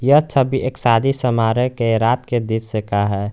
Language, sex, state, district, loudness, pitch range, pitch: Hindi, male, Jharkhand, Garhwa, -18 LUFS, 110-130 Hz, 120 Hz